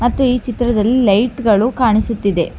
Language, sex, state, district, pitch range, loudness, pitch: Kannada, female, Karnataka, Bangalore, 215-245 Hz, -15 LUFS, 235 Hz